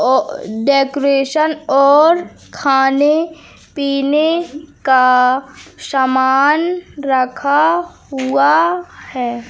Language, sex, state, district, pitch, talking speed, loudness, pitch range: Hindi, male, Madhya Pradesh, Katni, 280 Hz, 65 wpm, -14 LUFS, 265-310 Hz